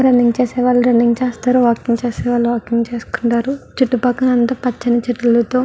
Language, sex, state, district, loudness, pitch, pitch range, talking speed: Telugu, female, Andhra Pradesh, Guntur, -16 LUFS, 245 Hz, 235-250 Hz, 160 wpm